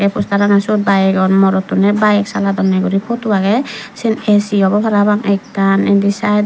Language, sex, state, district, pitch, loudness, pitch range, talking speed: Chakma, female, Tripura, Dhalai, 200 Hz, -13 LUFS, 195-210 Hz, 175 wpm